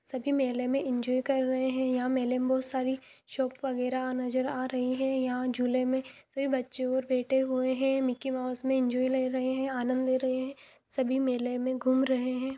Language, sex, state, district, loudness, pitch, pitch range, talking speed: Hindi, female, Jharkhand, Jamtara, -30 LUFS, 260 Hz, 255-265 Hz, 180 wpm